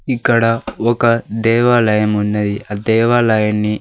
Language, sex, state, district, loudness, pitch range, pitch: Telugu, male, Andhra Pradesh, Sri Satya Sai, -15 LUFS, 105-120 Hz, 115 Hz